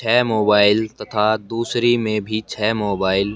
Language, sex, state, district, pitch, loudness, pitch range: Hindi, male, Haryana, Jhajjar, 110 Hz, -18 LUFS, 105-115 Hz